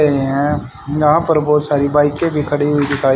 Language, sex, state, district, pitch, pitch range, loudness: Hindi, male, Haryana, Rohtak, 145 Hz, 140-150 Hz, -15 LUFS